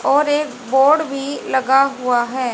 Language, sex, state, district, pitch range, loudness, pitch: Hindi, female, Haryana, Charkhi Dadri, 255-285 Hz, -17 LUFS, 270 Hz